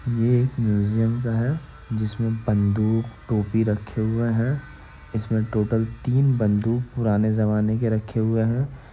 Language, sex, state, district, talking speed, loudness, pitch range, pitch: Hindi, male, Bihar, Gopalganj, 150 wpm, -23 LUFS, 110-120 Hz, 115 Hz